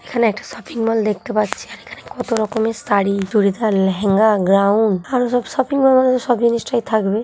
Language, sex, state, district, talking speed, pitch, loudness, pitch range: Bengali, female, West Bengal, Kolkata, 190 wpm, 220 Hz, -17 LUFS, 205-240 Hz